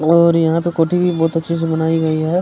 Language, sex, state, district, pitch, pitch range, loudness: Hindi, male, Bihar, Kishanganj, 165 Hz, 160-170 Hz, -16 LUFS